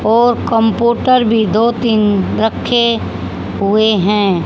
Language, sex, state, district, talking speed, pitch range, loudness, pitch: Hindi, female, Haryana, Charkhi Dadri, 110 wpm, 210-235 Hz, -13 LUFS, 225 Hz